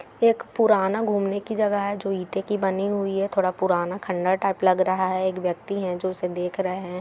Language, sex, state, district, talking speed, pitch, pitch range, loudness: Hindi, female, Bihar, Gaya, 205 wpm, 190 Hz, 185-200 Hz, -24 LUFS